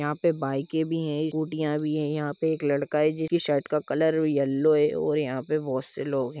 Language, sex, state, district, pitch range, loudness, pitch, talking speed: Hindi, male, Jharkhand, Jamtara, 145-155 Hz, -26 LUFS, 150 Hz, 225 wpm